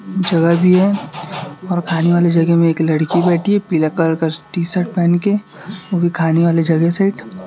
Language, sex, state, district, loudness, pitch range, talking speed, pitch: Hindi, male, Chhattisgarh, Raipur, -15 LUFS, 165-180 Hz, 210 wpm, 170 Hz